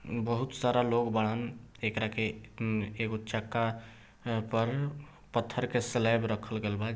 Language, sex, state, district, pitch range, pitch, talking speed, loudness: Bhojpuri, male, Bihar, East Champaran, 110-120 Hz, 115 Hz, 130 wpm, -32 LUFS